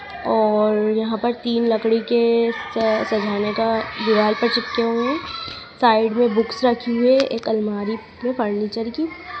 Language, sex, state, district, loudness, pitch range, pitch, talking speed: Hindi, female, Madhya Pradesh, Dhar, -20 LUFS, 220-240 Hz, 230 Hz, 160 wpm